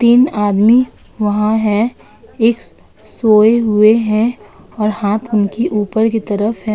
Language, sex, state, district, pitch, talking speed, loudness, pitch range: Hindi, female, Uttar Pradesh, Budaun, 215 Hz, 135 wpm, -14 LUFS, 210-230 Hz